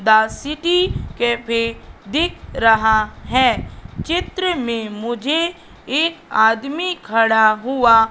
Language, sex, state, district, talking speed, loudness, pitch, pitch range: Hindi, female, Madhya Pradesh, Katni, 95 wpm, -18 LUFS, 235 Hz, 220-315 Hz